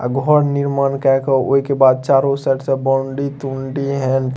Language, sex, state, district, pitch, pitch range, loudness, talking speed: Maithili, male, Bihar, Madhepura, 135 Hz, 135-140 Hz, -16 LUFS, 190 wpm